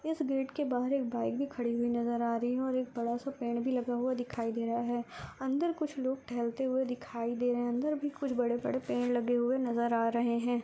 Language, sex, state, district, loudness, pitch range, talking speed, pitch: Hindi, female, Rajasthan, Churu, -33 LUFS, 235-265 Hz, 265 wpm, 245 Hz